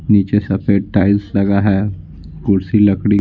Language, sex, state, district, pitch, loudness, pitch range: Hindi, male, Bihar, Patna, 100 Hz, -15 LUFS, 95-105 Hz